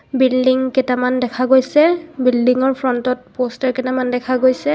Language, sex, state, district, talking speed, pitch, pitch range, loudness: Assamese, female, Assam, Kamrup Metropolitan, 115 wpm, 255 Hz, 250-260 Hz, -16 LUFS